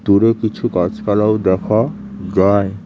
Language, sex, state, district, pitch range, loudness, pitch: Bengali, male, West Bengal, Cooch Behar, 95-110 Hz, -16 LUFS, 100 Hz